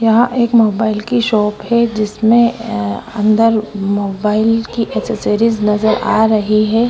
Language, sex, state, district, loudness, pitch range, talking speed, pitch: Hindi, female, Chhattisgarh, Korba, -14 LUFS, 210-230 Hz, 130 wpm, 220 Hz